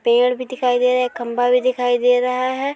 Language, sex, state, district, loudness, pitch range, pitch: Hindi, female, Uttar Pradesh, Jyotiba Phule Nagar, -18 LUFS, 245-255 Hz, 250 Hz